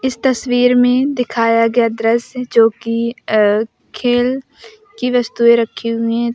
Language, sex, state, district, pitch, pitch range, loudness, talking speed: Hindi, female, Uttar Pradesh, Lucknow, 235 Hz, 230-250 Hz, -15 LUFS, 130 wpm